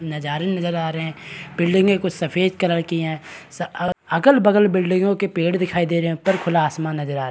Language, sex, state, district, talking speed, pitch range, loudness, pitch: Hindi, male, Bihar, Kishanganj, 205 wpm, 160-185 Hz, -20 LUFS, 175 Hz